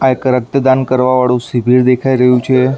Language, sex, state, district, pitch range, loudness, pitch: Gujarati, male, Maharashtra, Mumbai Suburban, 125-130 Hz, -12 LUFS, 130 Hz